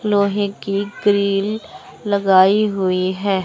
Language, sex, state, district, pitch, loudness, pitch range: Hindi, male, Chandigarh, Chandigarh, 200 Hz, -17 LUFS, 190-205 Hz